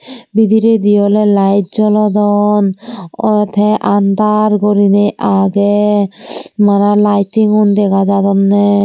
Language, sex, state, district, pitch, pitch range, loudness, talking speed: Chakma, female, Tripura, Dhalai, 205 Hz, 200-210 Hz, -11 LUFS, 95 wpm